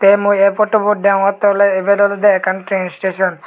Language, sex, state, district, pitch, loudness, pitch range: Chakma, male, Tripura, Unakoti, 200 Hz, -14 LUFS, 190-205 Hz